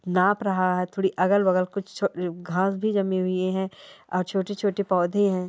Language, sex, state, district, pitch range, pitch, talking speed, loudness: Hindi, female, Rajasthan, Churu, 185-200 Hz, 190 Hz, 185 wpm, -25 LUFS